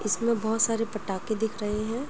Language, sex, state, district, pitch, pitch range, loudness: Hindi, female, Uttar Pradesh, Jyotiba Phule Nagar, 220 Hz, 215-230 Hz, -28 LUFS